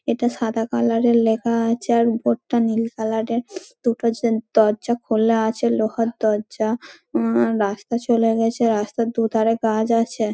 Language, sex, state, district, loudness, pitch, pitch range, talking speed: Bengali, female, West Bengal, Dakshin Dinajpur, -20 LUFS, 230 Hz, 220-235 Hz, 160 wpm